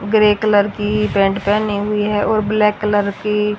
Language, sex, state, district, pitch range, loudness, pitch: Hindi, female, Haryana, Rohtak, 205-210 Hz, -16 LUFS, 210 Hz